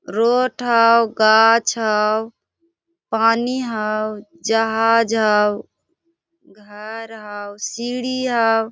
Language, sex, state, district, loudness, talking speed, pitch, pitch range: Hindi, female, Jharkhand, Sahebganj, -17 LUFS, 80 wpm, 225 Hz, 215-245 Hz